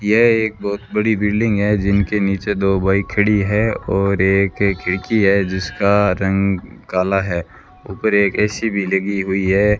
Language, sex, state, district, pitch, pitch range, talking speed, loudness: Hindi, male, Rajasthan, Bikaner, 100 Hz, 95-105 Hz, 165 wpm, -17 LUFS